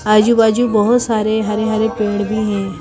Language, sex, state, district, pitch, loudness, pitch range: Hindi, female, Madhya Pradesh, Bhopal, 215 Hz, -15 LUFS, 210-220 Hz